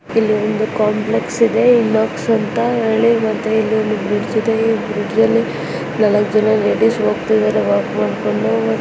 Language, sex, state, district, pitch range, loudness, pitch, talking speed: Kannada, female, Karnataka, Mysore, 160-225 Hz, -16 LUFS, 215 Hz, 145 wpm